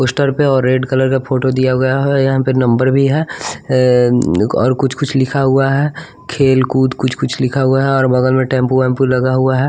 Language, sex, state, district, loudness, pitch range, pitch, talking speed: Hindi, male, Bihar, West Champaran, -14 LUFS, 130-135 Hz, 130 Hz, 210 wpm